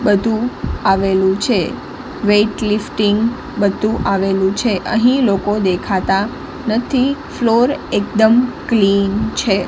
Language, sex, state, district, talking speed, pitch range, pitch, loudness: Gujarati, female, Gujarat, Gandhinagar, 100 wpm, 195-235 Hz, 210 Hz, -16 LUFS